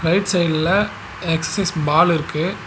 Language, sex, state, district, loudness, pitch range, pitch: Tamil, male, Tamil Nadu, Nilgiris, -19 LUFS, 160-185 Hz, 170 Hz